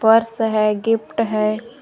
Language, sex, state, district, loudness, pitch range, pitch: Hindi, female, Jharkhand, Garhwa, -19 LUFS, 215-225 Hz, 225 Hz